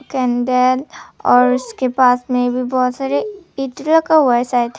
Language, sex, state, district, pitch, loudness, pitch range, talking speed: Hindi, female, Tripura, Unakoti, 255 Hz, -16 LUFS, 250-270 Hz, 165 wpm